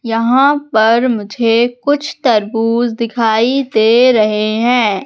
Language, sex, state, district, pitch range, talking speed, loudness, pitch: Hindi, female, Madhya Pradesh, Katni, 225-250 Hz, 105 wpm, -13 LUFS, 230 Hz